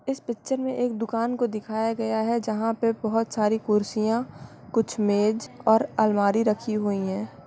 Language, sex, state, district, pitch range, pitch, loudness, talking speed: Hindi, female, Bihar, Samastipur, 215-230 Hz, 220 Hz, -25 LUFS, 170 wpm